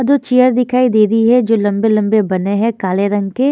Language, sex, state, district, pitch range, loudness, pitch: Hindi, female, Punjab, Fazilka, 205-250 Hz, -13 LUFS, 220 Hz